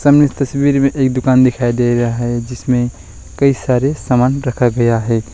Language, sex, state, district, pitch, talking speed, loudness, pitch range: Hindi, male, West Bengal, Alipurduar, 125 Hz, 190 wpm, -14 LUFS, 120-135 Hz